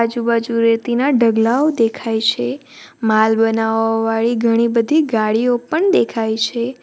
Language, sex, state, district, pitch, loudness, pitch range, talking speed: Gujarati, female, Gujarat, Valsad, 230 Hz, -16 LUFS, 225-245 Hz, 130 wpm